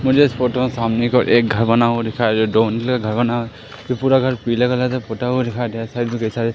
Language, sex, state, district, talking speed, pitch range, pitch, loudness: Hindi, male, Madhya Pradesh, Katni, 275 wpm, 115-125 Hz, 120 Hz, -18 LUFS